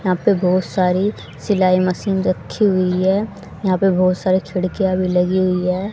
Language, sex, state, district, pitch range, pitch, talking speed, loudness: Hindi, female, Haryana, Jhajjar, 185-195 Hz, 185 Hz, 180 wpm, -18 LUFS